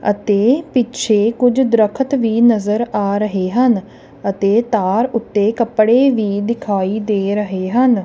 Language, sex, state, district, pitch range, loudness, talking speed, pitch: Punjabi, female, Punjab, Kapurthala, 205-240 Hz, -15 LUFS, 135 wpm, 220 Hz